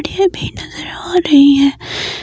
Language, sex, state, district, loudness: Hindi, female, Himachal Pradesh, Shimla, -12 LUFS